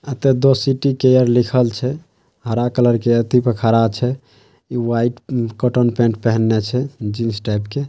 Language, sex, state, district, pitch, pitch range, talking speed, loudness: Maithili, male, Bihar, Saharsa, 120 Hz, 115-130 Hz, 145 wpm, -17 LUFS